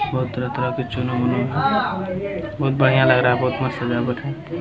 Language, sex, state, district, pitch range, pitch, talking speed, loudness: Hindi, male, Bihar, Jamui, 125-145 Hz, 130 Hz, 195 wpm, -21 LUFS